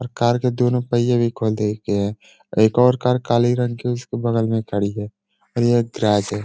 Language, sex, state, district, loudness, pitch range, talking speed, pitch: Hindi, male, Uttar Pradesh, Ghazipur, -20 LUFS, 105-125 Hz, 240 wpm, 120 Hz